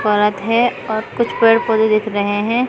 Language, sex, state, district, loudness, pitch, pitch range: Hindi, female, Uttar Pradesh, Shamli, -16 LUFS, 220 Hz, 210-230 Hz